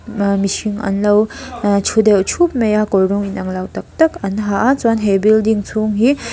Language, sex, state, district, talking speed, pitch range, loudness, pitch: Mizo, female, Mizoram, Aizawl, 235 wpm, 200-225 Hz, -15 LUFS, 210 Hz